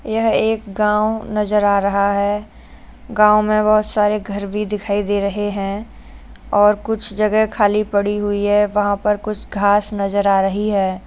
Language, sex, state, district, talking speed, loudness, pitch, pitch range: Hindi, female, Uttar Pradesh, Jalaun, 175 wpm, -17 LUFS, 205 Hz, 200-215 Hz